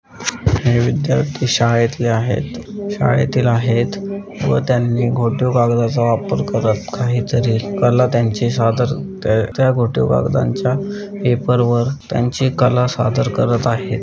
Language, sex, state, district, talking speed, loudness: Marathi, female, Maharashtra, Dhule, 120 wpm, -17 LUFS